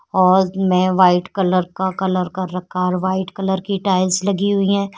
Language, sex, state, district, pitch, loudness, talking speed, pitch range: Hindi, female, Uttar Pradesh, Shamli, 185 Hz, -18 LUFS, 180 wpm, 185-195 Hz